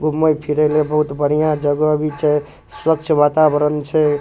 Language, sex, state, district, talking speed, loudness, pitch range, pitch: Maithili, male, Bihar, Supaul, 155 wpm, -17 LUFS, 150-155 Hz, 150 Hz